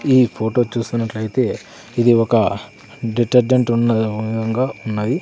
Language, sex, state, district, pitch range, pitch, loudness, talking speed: Telugu, male, Andhra Pradesh, Sri Satya Sai, 110-125 Hz, 115 Hz, -18 LUFS, 105 wpm